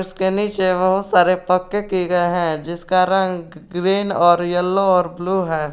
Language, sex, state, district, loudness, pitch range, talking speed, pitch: Hindi, male, Jharkhand, Garhwa, -18 LUFS, 175-190 Hz, 165 wpm, 180 Hz